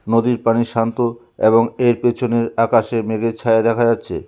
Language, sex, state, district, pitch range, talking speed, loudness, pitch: Bengali, male, West Bengal, Alipurduar, 115-120 Hz, 155 wpm, -17 LUFS, 115 Hz